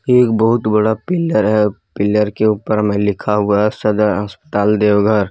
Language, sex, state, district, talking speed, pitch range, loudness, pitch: Hindi, male, Jharkhand, Deoghar, 160 wpm, 105-110 Hz, -15 LUFS, 105 Hz